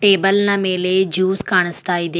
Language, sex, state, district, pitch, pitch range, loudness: Kannada, female, Karnataka, Bidar, 190 Hz, 180-195 Hz, -16 LUFS